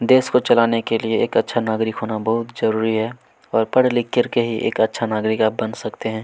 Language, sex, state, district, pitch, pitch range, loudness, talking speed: Hindi, male, Chhattisgarh, Kabirdham, 115 Hz, 110-120 Hz, -19 LUFS, 230 wpm